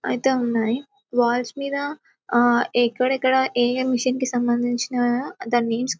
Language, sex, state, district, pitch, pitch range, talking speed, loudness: Telugu, female, Telangana, Karimnagar, 245 Hz, 240-260 Hz, 130 wpm, -22 LUFS